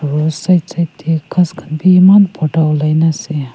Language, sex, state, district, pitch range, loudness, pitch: Nagamese, female, Nagaland, Kohima, 155-175 Hz, -13 LUFS, 160 Hz